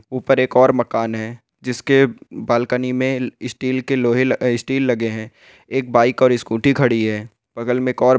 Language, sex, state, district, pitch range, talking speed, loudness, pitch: Hindi, male, Rajasthan, Nagaur, 115-130 Hz, 185 wpm, -18 LUFS, 125 Hz